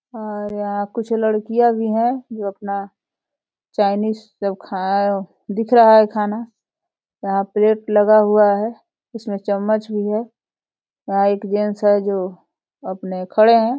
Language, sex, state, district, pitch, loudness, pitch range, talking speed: Hindi, female, Uttar Pradesh, Deoria, 210 Hz, -18 LUFS, 200-220 Hz, 140 wpm